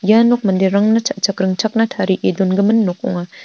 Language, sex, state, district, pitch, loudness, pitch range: Garo, female, Meghalaya, North Garo Hills, 200 Hz, -16 LUFS, 190-225 Hz